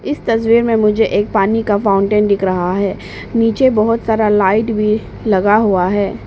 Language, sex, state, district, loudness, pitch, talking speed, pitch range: Hindi, female, Arunachal Pradesh, Papum Pare, -14 LUFS, 210 Hz, 180 wpm, 200-225 Hz